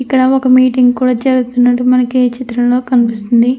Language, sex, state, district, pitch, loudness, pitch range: Telugu, female, Andhra Pradesh, Anantapur, 250 Hz, -11 LUFS, 245-255 Hz